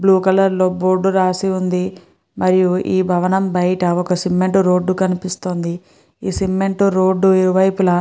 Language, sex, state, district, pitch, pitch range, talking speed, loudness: Telugu, female, Andhra Pradesh, Guntur, 185 Hz, 180-190 Hz, 150 wpm, -16 LUFS